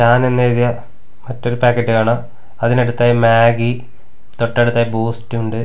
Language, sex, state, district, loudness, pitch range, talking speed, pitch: Malayalam, male, Kerala, Kasaragod, -15 LUFS, 115-120 Hz, 105 wpm, 120 Hz